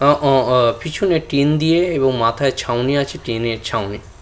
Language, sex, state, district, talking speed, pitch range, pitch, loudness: Bengali, male, West Bengal, Purulia, 185 wpm, 115-150 Hz, 135 Hz, -17 LUFS